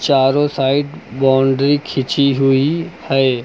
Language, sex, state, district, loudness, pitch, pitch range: Hindi, male, Uttar Pradesh, Lucknow, -15 LUFS, 135 Hz, 135-145 Hz